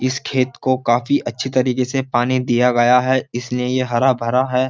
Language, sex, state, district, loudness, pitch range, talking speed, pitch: Hindi, male, Uttar Pradesh, Jyotiba Phule Nagar, -18 LUFS, 125-130 Hz, 205 wpm, 125 Hz